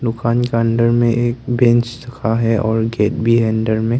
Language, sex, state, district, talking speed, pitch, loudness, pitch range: Hindi, male, Arunachal Pradesh, Longding, 195 wpm, 115 Hz, -16 LUFS, 110-120 Hz